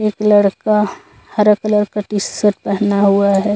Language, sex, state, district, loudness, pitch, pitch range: Hindi, female, Chhattisgarh, Korba, -15 LUFS, 210 Hz, 200-210 Hz